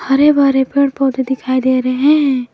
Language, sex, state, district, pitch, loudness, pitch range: Hindi, female, Jharkhand, Garhwa, 265 Hz, -13 LUFS, 260-280 Hz